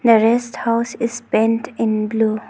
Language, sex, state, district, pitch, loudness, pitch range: English, female, Arunachal Pradesh, Longding, 230 Hz, -18 LUFS, 220-235 Hz